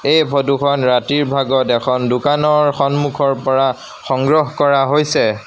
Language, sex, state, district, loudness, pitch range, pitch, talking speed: Assamese, male, Assam, Sonitpur, -15 LUFS, 130-145 Hz, 140 Hz, 130 wpm